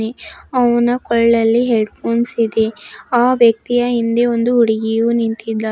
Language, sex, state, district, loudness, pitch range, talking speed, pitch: Kannada, female, Karnataka, Bidar, -15 LUFS, 225-240 Hz, 115 wpm, 230 Hz